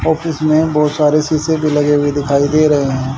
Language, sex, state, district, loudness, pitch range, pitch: Hindi, male, Haryana, Charkhi Dadri, -14 LUFS, 145-155 Hz, 150 Hz